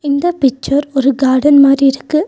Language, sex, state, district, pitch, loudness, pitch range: Tamil, female, Tamil Nadu, Nilgiris, 275 Hz, -12 LUFS, 270-290 Hz